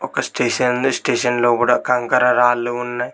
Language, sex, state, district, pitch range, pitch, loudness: Telugu, male, Telangana, Mahabubabad, 120-125 Hz, 125 Hz, -17 LUFS